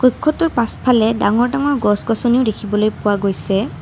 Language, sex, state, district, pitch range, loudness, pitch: Assamese, female, Assam, Kamrup Metropolitan, 210-255 Hz, -16 LUFS, 225 Hz